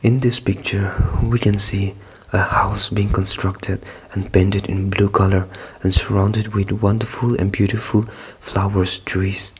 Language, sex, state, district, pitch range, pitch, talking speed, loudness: English, male, Nagaland, Kohima, 95-105 Hz, 100 Hz, 145 wpm, -19 LUFS